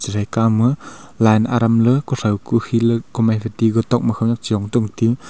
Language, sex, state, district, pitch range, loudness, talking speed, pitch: Wancho, male, Arunachal Pradesh, Longding, 110-120 Hz, -17 LUFS, 180 wpm, 115 Hz